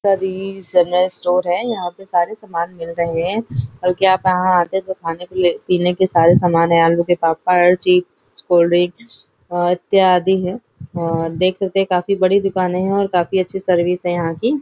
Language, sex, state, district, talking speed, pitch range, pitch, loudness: Hindi, female, Uttar Pradesh, Varanasi, 200 wpm, 175-190 Hz, 180 Hz, -17 LUFS